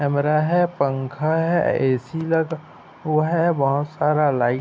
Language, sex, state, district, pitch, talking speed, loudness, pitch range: Hindi, male, Chhattisgarh, Bilaspur, 155 Hz, 170 wpm, -21 LUFS, 140-160 Hz